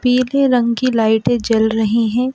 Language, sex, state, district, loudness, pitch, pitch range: Hindi, male, Madhya Pradesh, Bhopal, -15 LUFS, 235 Hz, 225-250 Hz